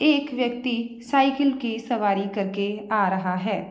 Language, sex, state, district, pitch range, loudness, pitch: Hindi, female, Bihar, Begusarai, 200-255 Hz, -24 LUFS, 235 Hz